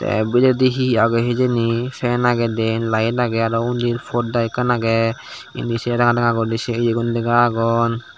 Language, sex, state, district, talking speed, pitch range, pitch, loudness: Chakma, male, Tripura, Dhalai, 175 wpm, 115-120 Hz, 115 Hz, -18 LUFS